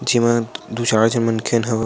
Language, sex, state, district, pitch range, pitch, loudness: Chhattisgarhi, male, Chhattisgarh, Sarguja, 110-120 Hz, 115 Hz, -18 LUFS